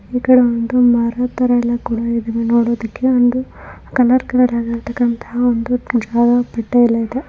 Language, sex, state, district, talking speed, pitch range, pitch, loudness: Kannada, female, Karnataka, Chamarajanagar, 130 wpm, 235-250 Hz, 240 Hz, -16 LUFS